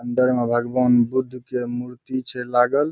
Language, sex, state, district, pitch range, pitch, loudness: Maithili, male, Bihar, Saharsa, 120-125 Hz, 125 Hz, -21 LUFS